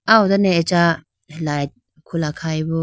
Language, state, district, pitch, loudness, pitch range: Idu Mishmi, Arunachal Pradesh, Lower Dibang Valley, 165 Hz, -19 LUFS, 155-175 Hz